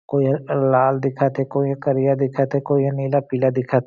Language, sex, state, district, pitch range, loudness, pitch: Chhattisgarhi, male, Chhattisgarh, Jashpur, 135-140 Hz, -20 LUFS, 135 Hz